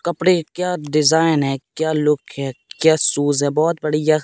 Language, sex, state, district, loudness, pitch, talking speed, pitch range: Hindi, male, Madhya Pradesh, Katni, -18 LUFS, 155 Hz, 170 wpm, 145-160 Hz